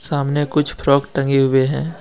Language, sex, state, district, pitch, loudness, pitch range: Hindi, male, Jharkhand, Deoghar, 140 Hz, -17 LUFS, 135-150 Hz